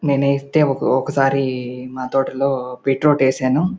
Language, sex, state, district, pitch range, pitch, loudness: Telugu, male, Andhra Pradesh, Anantapur, 130-140 Hz, 135 Hz, -18 LUFS